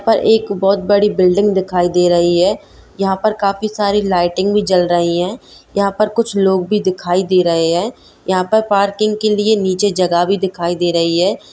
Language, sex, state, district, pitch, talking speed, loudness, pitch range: Hindi, female, Bihar, Gopalganj, 195 Hz, 190 wpm, -15 LUFS, 180-205 Hz